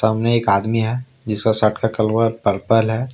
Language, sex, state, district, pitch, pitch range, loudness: Hindi, male, Jharkhand, Ranchi, 110 Hz, 110-115 Hz, -18 LUFS